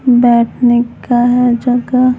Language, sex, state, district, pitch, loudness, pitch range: Hindi, female, Bihar, Patna, 245 Hz, -12 LUFS, 240-250 Hz